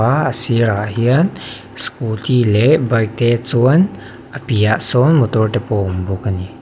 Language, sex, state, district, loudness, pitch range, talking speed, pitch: Mizo, male, Mizoram, Aizawl, -15 LUFS, 110-130 Hz, 200 wpm, 115 Hz